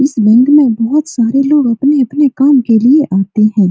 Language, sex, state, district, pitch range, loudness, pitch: Hindi, female, Bihar, Supaul, 225-285 Hz, -10 LUFS, 260 Hz